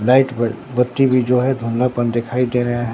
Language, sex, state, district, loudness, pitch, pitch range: Hindi, male, Bihar, Katihar, -18 LUFS, 125 Hz, 120-125 Hz